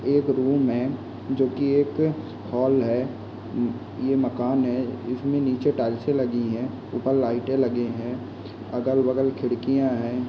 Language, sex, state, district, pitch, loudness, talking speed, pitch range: Hindi, male, West Bengal, Kolkata, 130 Hz, -24 LUFS, 140 wpm, 120-135 Hz